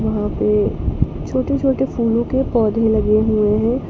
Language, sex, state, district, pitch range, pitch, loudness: Hindi, female, Jharkhand, Palamu, 210-260 Hz, 225 Hz, -18 LUFS